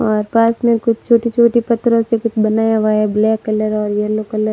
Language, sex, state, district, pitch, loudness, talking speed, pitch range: Hindi, female, Rajasthan, Barmer, 220 Hz, -15 LUFS, 225 wpm, 215-230 Hz